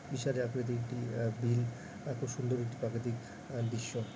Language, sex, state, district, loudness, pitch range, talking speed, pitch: Bengali, male, West Bengal, Dakshin Dinajpur, -37 LUFS, 115-130 Hz, 175 wpm, 120 Hz